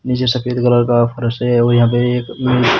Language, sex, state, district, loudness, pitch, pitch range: Hindi, male, Uttar Pradesh, Shamli, -15 LUFS, 120 Hz, 120-125 Hz